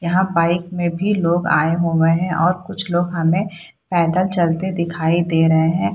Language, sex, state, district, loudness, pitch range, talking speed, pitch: Hindi, female, Bihar, Purnia, -18 LUFS, 165-180 Hz, 180 wpm, 170 Hz